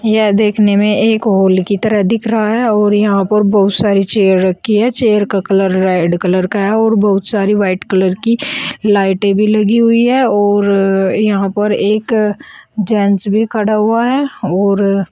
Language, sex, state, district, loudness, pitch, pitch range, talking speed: Hindi, female, Uttar Pradesh, Shamli, -12 LUFS, 205 Hz, 195-220 Hz, 180 wpm